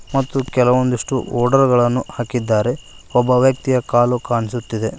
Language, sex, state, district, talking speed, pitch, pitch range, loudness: Kannada, male, Karnataka, Koppal, 110 wpm, 125 Hz, 120-130 Hz, -17 LUFS